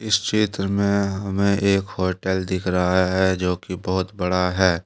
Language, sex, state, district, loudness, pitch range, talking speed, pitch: Hindi, male, Jharkhand, Deoghar, -21 LUFS, 90-100 Hz, 175 wpm, 95 Hz